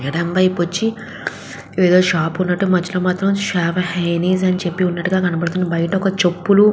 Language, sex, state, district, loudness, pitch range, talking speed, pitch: Telugu, female, Andhra Pradesh, Visakhapatnam, -18 LUFS, 175-185 Hz, 160 wpm, 180 Hz